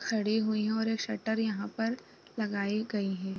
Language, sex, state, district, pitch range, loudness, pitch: Hindi, female, Bihar, East Champaran, 210-225 Hz, -32 LUFS, 215 Hz